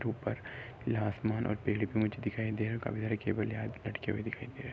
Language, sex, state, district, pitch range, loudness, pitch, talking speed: Hindi, male, Uttar Pradesh, Gorakhpur, 105-120 Hz, -35 LUFS, 110 Hz, 255 wpm